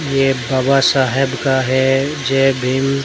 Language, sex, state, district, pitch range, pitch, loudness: Hindi, male, Rajasthan, Bikaner, 130-135 Hz, 135 Hz, -15 LUFS